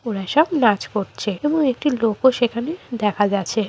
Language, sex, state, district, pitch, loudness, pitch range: Bengali, female, West Bengal, Malda, 230 Hz, -20 LUFS, 205-275 Hz